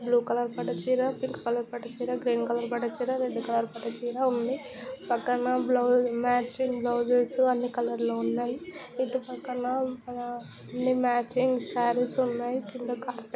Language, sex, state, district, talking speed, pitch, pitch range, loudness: Telugu, female, Telangana, Karimnagar, 135 wpm, 245 Hz, 240-255 Hz, -29 LUFS